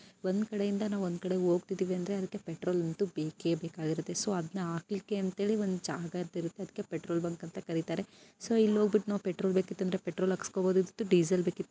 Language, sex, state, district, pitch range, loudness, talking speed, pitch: Kannada, female, Karnataka, Dharwad, 175-200 Hz, -33 LUFS, 190 wpm, 185 Hz